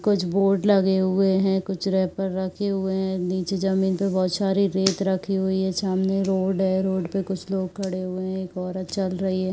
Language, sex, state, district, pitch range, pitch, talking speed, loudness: Hindi, female, Bihar, Saharsa, 185-195 Hz, 190 Hz, 215 wpm, -24 LUFS